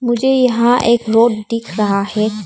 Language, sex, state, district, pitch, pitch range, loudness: Hindi, female, Arunachal Pradesh, Papum Pare, 230 Hz, 215-240 Hz, -14 LUFS